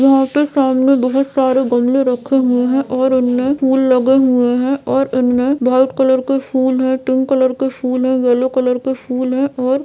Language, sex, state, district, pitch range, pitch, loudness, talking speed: Hindi, female, Jharkhand, Jamtara, 255-270 Hz, 260 Hz, -14 LUFS, 200 wpm